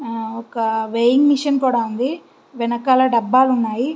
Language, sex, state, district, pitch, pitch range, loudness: Telugu, female, Andhra Pradesh, Visakhapatnam, 245 Hz, 230-260 Hz, -18 LUFS